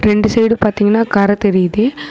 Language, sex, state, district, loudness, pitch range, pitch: Tamil, female, Tamil Nadu, Namakkal, -13 LUFS, 205-225 Hz, 210 Hz